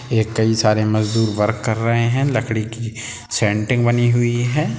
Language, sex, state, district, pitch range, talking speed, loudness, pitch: Hindi, male, Bihar, Sitamarhi, 110-120 Hz, 175 wpm, -18 LUFS, 115 Hz